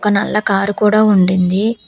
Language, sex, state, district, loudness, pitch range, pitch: Telugu, female, Telangana, Hyderabad, -13 LUFS, 195-210 Hz, 205 Hz